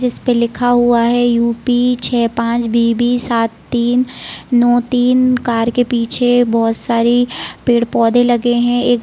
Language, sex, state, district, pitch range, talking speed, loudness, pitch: Hindi, female, Bihar, East Champaran, 235-245 Hz, 175 wpm, -14 LUFS, 240 Hz